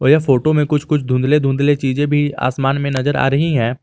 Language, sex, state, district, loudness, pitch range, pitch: Hindi, male, Jharkhand, Garhwa, -16 LUFS, 135-145 Hz, 140 Hz